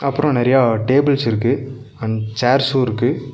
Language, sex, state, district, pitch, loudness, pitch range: Tamil, male, Tamil Nadu, Nilgiris, 130 Hz, -17 LUFS, 115-135 Hz